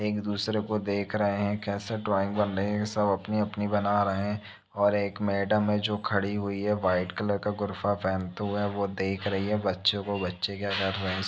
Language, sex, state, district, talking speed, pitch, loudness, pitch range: Hindi, male, Uttar Pradesh, Etah, 230 wpm, 100 Hz, -28 LUFS, 100-105 Hz